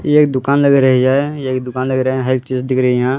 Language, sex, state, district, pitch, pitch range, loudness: Hindi, male, Haryana, Charkhi Dadri, 130 Hz, 130-140 Hz, -15 LUFS